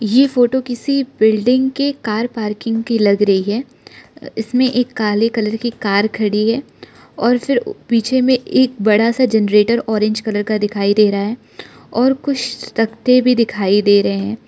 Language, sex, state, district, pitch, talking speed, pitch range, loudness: Hindi, female, Arunachal Pradesh, Lower Dibang Valley, 225 Hz, 175 wpm, 210-250 Hz, -16 LUFS